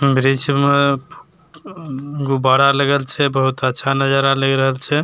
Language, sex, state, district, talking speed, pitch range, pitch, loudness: Maithili, male, Bihar, Begusarai, 120 wpm, 135-140 Hz, 135 Hz, -16 LUFS